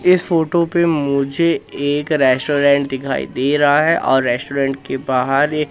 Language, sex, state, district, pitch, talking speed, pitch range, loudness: Hindi, male, Madhya Pradesh, Katni, 145 Hz, 160 wpm, 135-155 Hz, -16 LUFS